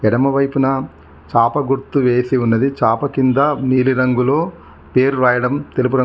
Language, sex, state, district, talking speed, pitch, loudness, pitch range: Telugu, male, Telangana, Mahabubabad, 120 wpm, 130 Hz, -16 LUFS, 125-135 Hz